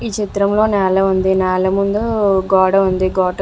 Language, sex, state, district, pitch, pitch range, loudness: Telugu, female, Andhra Pradesh, Visakhapatnam, 195 Hz, 190-205 Hz, -15 LUFS